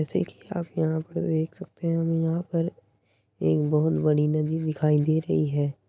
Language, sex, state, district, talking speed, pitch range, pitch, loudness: Hindi, female, Uttar Pradesh, Muzaffarnagar, 195 wpm, 150-165 Hz, 155 Hz, -26 LUFS